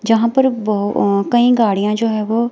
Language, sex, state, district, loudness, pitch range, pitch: Hindi, female, Himachal Pradesh, Shimla, -15 LUFS, 210-235 Hz, 225 Hz